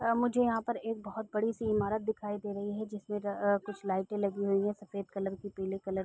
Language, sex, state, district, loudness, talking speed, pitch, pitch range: Hindi, female, Uttar Pradesh, Varanasi, -34 LUFS, 260 wpm, 205 Hz, 200-220 Hz